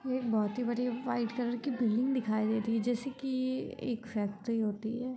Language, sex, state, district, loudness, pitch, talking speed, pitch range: Hindi, female, Bihar, Muzaffarpur, -33 LUFS, 240 Hz, 220 wpm, 220-255 Hz